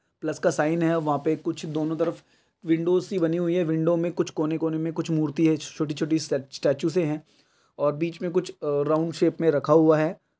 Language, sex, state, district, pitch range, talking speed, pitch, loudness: Hindi, male, Andhra Pradesh, Krishna, 155-170 Hz, 225 wpm, 160 Hz, -25 LUFS